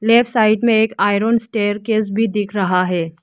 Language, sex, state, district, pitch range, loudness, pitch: Hindi, female, Arunachal Pradesh, Lower Dibang Valley, 200-225 Hz, -17 LUFS, 215 Hz